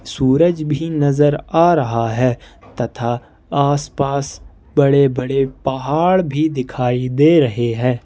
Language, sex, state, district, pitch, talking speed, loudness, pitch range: Hindi, male, Jharkhand, Ranchi, 135 Hz, 110 wpm, -17 LUFS, 125-150 Hz